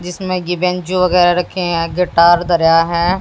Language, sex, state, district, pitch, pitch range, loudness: Hindi, female, Haryana, Jhajjar, 180 Hz, 170-180 Hz, -14 LUFS